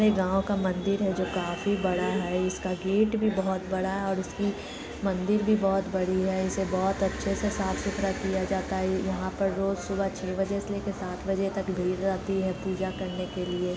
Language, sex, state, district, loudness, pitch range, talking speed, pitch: Hindi, female, Bihar, Lakhisarai, -28 LUFS, 185-195 Hz, 215 wpm, 190 Hz